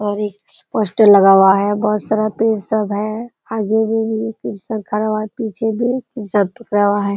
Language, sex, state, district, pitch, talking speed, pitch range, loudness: Hindi, female, Bihar, Sitamarhi, 215 Hz, 215 wpm, 205-225 Hz, -17 LUFS